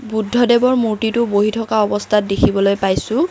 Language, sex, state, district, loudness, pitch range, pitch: Assamese, female, Assam, Kamrup Metropolitan, -16 LUFS, 205-235 Hz, 220 Hz